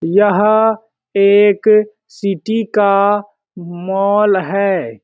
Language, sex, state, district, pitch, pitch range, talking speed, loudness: Hindi, male, Chhattisgarh, Balrampur, 205 Hz, 195-210 Hz, 70 wpm, -14 LUFS